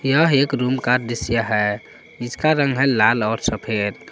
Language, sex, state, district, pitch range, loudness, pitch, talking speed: Hindi, male, Jharkhand, Palamu, 110-135 Hz, -19 LUFS, 120 Hz, 175 wpm